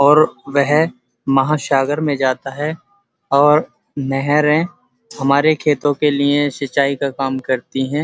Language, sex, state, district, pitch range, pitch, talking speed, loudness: Hindi, male, Uttar Pradesh, Muzaffarnagar, 135-150 Hz, 140 Hz, 125 wpm, -17 LUFS